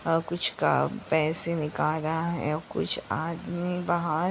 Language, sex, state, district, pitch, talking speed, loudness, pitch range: Hindi, female, Maharashtra, Chandrapur, 165 Hz, 155 wpm, -28 LUFS, 160-175 Hz